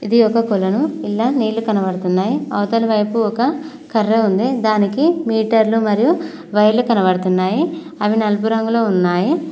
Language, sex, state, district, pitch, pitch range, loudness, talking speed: Telugu, female, Telangana, Mahabubabad, 225 Hz, 205-245 Hz, -16 LUFS, 125 wpm